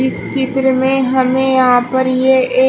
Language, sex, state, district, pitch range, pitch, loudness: Hindi, female, Uttar Pradesh, Shamli, 255-265 Hz, 260 Hz, -13 LUFS